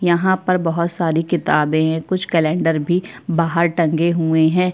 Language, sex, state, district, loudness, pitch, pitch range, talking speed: Hindi, female, Chhattisgarh, Kabirdham, -18 LUFS, 170 Hz, 160-175 Hz, 165 wpm